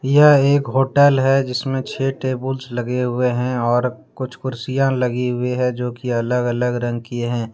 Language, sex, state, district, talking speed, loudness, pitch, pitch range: Hindi, male, Jharkhand, Deoghar, 185 wpm, -19 LUFS, 125 Hz, 125-135 Hz